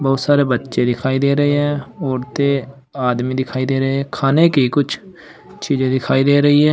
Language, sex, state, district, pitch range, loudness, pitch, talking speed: Hindi, male, Uttar Pradesh, Saharanpur, 130-145 Hz, -17 LUFS, 135 Hz, 185 wpm